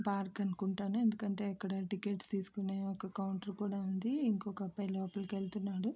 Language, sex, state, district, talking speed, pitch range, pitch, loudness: Telugu, female, Andhra Pradesh, Srikakulam, 140 wpm, 195-205 Hz, 200 Hz, -38 LUFS